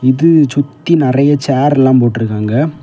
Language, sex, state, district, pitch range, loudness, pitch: Tamil, male, Tamil Nadu, Kanyakumari, 130-150 Hz, -11 LUFS, 140 Hz